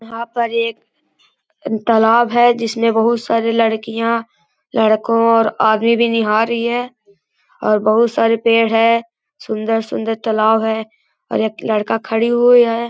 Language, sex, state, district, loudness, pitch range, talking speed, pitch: Hindi, male, Bihar, Gaya, -15 LUFS, 220-230 Hz, 135 wpm, 230 Hz